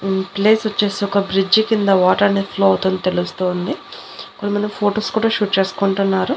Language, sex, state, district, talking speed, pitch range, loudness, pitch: Telugu, female, Andhra Pradesh, Annamaya, 150 wpm, 190-210 Hz, -17 LUFS, 195 Hz